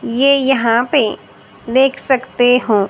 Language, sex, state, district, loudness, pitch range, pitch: Hindi, male, Haryana, Charkhi Dadri, -14 LUFS, 235-270 Hz, 255 Hz